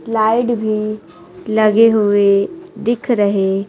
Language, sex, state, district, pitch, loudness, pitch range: Hindi, female, Chhattisgarh, Raipur, 215 Hz, -15 LUFS, 200-230 Hz